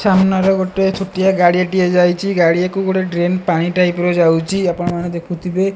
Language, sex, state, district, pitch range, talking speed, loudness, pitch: Odia, female, Odisha, Malkangiri, 175-190 Hz, 135 wpm, -15 LUFS, 180 Hz